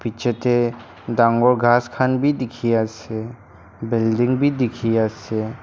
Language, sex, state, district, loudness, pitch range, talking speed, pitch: Nagamese, male, Nagaland, Dimapur, -20 LUFS, 115-125 Hz, 115 wpm, 115 Hz